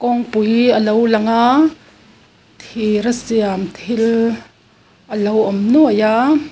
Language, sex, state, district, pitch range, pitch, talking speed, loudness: Mizo, female, Mizoram, Aizawl, 210-240 Hz, 225 Hz, 130 wpm, -15 LUFS